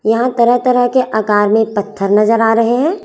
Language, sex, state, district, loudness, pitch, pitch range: Hindi, female, Chhattisgarh, Raipur, -13 LUFS, 225 Hz, 215-245 Hz